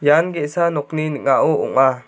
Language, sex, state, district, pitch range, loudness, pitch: Garo, male, Meghalaya, South Garo Hills, 135-160 Hz, -18 LUFS, 145 Hz